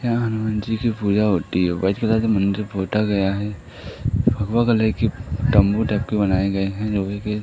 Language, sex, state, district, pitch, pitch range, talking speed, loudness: Hindi, male, Madhya Pradesh, Katni, 105 Hz, 100-110 Hz, 180 wpm, -21 LUFS